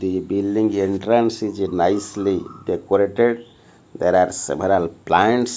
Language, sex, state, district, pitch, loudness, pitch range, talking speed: English, male, Odisha, Malkangiri, 100 Hz, -20 LUFS, 90-110 Hz, 110 wpm